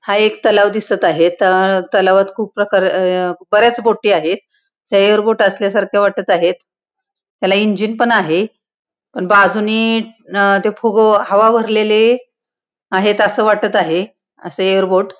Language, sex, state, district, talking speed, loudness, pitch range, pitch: Marathi, female, Maharashtra, Pune, 150 wpm, -14 LUFS, 190-220 Hz, 205 Hz